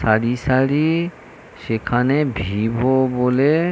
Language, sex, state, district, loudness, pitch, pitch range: Bengali, male, West Bengal, North 24 Parganas, -19 LUFS, 130 Hz, 115-145 Hz